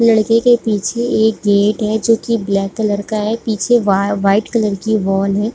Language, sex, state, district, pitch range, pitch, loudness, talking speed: Hindi, female, Chhattisgarh, Bilaspur, 200-225 Hz, 215 Hz, -15 LUFS, 205 wpm